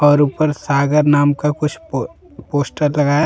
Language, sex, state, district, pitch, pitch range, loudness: Hindi, male, Jharkhand, Deoghar, 145 Hz, 145-150 Hz, -17 LUFS